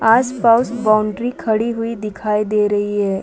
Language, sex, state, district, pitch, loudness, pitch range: Hindi, female, Chhattisgarh, Balrampur, 215 Hz, -17 LUFS, 210-230 Hz